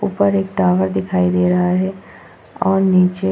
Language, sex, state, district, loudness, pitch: Hindi, female, Goa, North and South Goa, -16 LUFS, 180 Hz